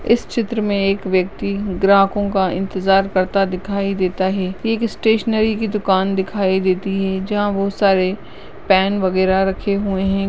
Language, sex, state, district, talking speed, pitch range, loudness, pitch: Hindi, female, Uttarakhand, Uttarkashi, 155 wpm, 190-205 Hz, -18 LUFS, 195 Hz